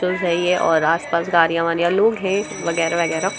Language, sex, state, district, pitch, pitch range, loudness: Hindi, female, Bihar, Muzaffarpur, 170 Hz, 165-185 Hz, -18 LUFS